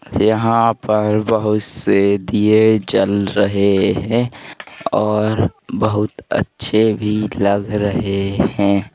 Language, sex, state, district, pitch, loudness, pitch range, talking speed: Hindi, male, Uttar Pradesh, Hamirpur, 105 Hz, -16 LUFS, 100-110 Hz, 100 wpm